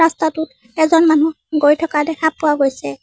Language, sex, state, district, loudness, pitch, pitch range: Assamese, female, Assam, Sonitpur, -16 LUFS, 315 Hz, 295-320 Hz